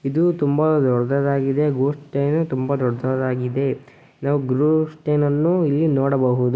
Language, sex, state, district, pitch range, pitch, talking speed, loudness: Kannada, male, Karnataka, Shimoga, 130-150 Hz, 140 Hz, 120 wpm, -20 LUFS